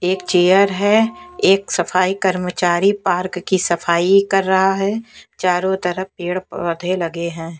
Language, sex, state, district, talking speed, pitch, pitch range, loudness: Hindi, female, Haryana, Jhajjar, 140 wpm, 185 Hz, 180-195 Hz, -17 LUFS